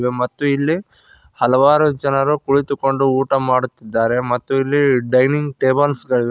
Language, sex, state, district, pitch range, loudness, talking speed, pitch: Kannada, male, Karnataka, Koppal, 125-145 Hz, -17 LUFS, 115 wpm, 135 Hz